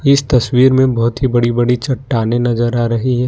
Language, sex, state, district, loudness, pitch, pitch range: Hindi, male, Jharkhand, Ranchi, -14 LUFS, 125 Hz, 120-130 Hz